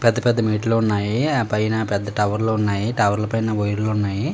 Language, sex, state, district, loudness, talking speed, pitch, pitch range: Telugu, male, Telangana, Karimnagar, -20 LUFS, 195 wpm, 110 Hz, 105-115 Hz